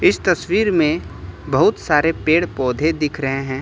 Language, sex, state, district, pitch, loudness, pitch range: Hindi, male, Uttar Pradesh, Lucknow, 155 Hz, -18 LUFS, 135-170 Hz